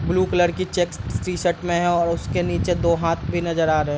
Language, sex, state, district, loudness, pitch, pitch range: Hindi, male, Bihar, East Champaran, -21 LUFS, 175 Hz, 170-175 Hz